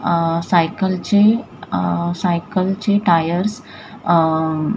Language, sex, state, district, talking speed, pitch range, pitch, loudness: Marathi, female, Maharashtra, Mumbai Suburban, 90 wpm, 165-205 Hz, 175 Hz, -18 LUFS